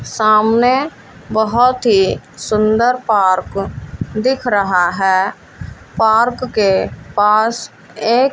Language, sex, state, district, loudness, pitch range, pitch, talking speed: Hindi, female, Haryana, Jhajjar, -15 LUFS, 205-245 Hz, 220 Hz, 85 wpm